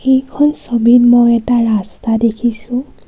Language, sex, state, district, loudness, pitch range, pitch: Assamese, female, Assam, Kamrup Metropolitan, -13 LUFS, 230-250 Hz, 240 Hz